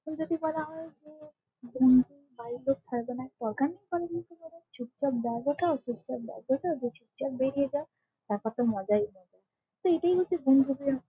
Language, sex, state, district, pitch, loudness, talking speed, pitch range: Bengali, female, West Bengal, Malda, 275 Hz, -30 LUFS, 200 wpm, 245-320 Hz